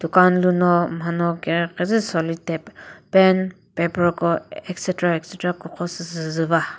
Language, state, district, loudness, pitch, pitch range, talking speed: Chakhesang, Nagaland, Dimapur, -21 LUFS, 175 Hz, 165-185 Hz, 140 wpm